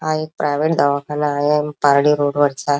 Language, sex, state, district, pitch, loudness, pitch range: Marathi, male, Maharashtra, Chandrapur, 145 Hz, -17 LUFS, 145-150 Hz